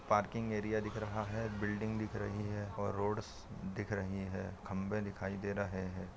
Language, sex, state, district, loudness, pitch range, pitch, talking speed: Hindi, male, Andhra Pradesh, Guntur, -39 LUFS, 95-105 Hz, 105 Hz, 185 wpm